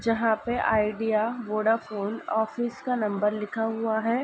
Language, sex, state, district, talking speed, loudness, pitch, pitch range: Hindi, female, Uttar Pradesh, Ghazipur, 140 wpm, -27 LUFS, 225 Hz, 215-230 Hz